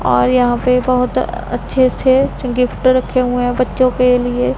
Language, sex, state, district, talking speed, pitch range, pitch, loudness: Hindi, female, Punjab, Pathankot, 170 wpm, 245-255 Hz, 250 Hz, -15 LUFS